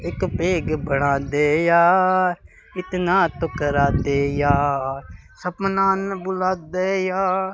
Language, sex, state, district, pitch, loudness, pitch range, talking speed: Hindi, male, Rajasthan, Bikaner, 175 Hz, -20 LUFS, 145-185 Hz, 125 wpm